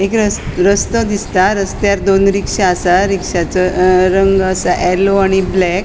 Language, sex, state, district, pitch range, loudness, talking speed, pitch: Konkani, female, Goa, North and South Goa, 185-200 Hz, -13 LUFS, 165 wpm, 190 Hz